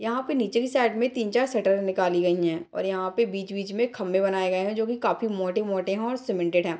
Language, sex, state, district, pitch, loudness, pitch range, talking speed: Hindi, female, Bihar, Darbhanga, 200 Hz, -26 LUFS, 185-235 Hz, 255 wpm